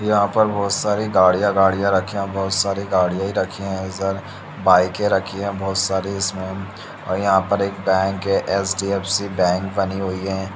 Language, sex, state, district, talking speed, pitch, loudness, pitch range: Hindi, male, Bihar, Purnia, 190 wpm, 95 Hz, -20 LUFS, 95-100 Hz